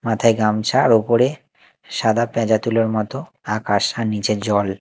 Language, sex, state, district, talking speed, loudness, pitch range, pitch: Bengali, male, Odisha, Nuapada, 150 wpm, -19 LUFS, 105-120 Hz, 110 Hz